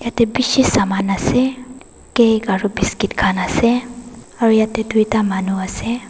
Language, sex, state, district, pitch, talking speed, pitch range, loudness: Nagamese, female, Nagaland, Dimapur, 225 Hz, 135 wpm, 195-240 Hz, -17 LUFS